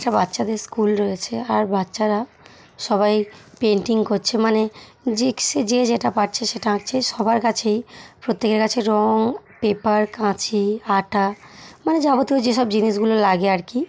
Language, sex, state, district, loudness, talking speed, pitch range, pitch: Bengali, female, West Bengal, Malda, -20 LUFS, 135 wpm, 205-230 Hz, 220 Hz